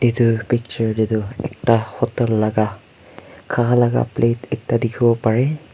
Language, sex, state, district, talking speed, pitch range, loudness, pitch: Nagamese, male, Nagaland, Kohima, 135 wpm, 110-120 Hz, -19 LUFS, 115 Hz